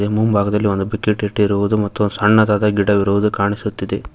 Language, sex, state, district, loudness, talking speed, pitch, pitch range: Kannada, male, Karnataka, Koppal, -17 LUFS, 130 wpm, 105 Hz, 100-105 Hz